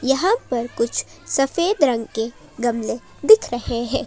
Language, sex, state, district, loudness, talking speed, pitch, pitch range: Hindi, female, Jharkhand, Palamu, -20 LUFS, 145 wpm, 255 Hz, 235-300 Hz